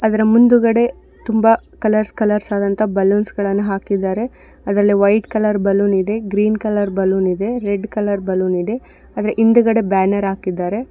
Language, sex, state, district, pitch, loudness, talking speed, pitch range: Kannada, female, Karnataka, Bellary, 210 Hz, -16 LUFS, 135 wpm, 195-220 Hz